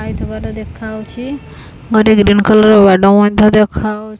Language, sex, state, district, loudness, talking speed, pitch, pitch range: Odia, female, Odisha, Khordha, -10 LUFS, 115 wpm, 210 Hz, 200-215 Hz